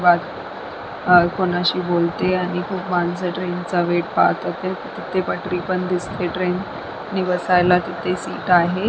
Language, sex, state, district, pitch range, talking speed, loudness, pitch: Marathi, female, Maharashtra, Sindhudurg, 175-185 Hz, 130 wpm, -20 LUFS, 180 Hz